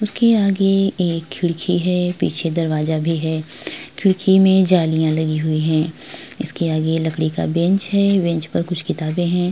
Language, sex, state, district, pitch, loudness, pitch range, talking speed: Hindi, female, Chhattisgarh, Korba, 175 Hz, -18 LUFS, 160-190 Hz, 165 wpm